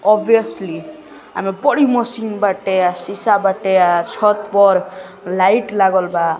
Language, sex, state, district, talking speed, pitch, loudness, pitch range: Hindi, male, Bihar, West Champaran, 130 wpm, 195 Hz, -15 LUFS, 185-215 Hz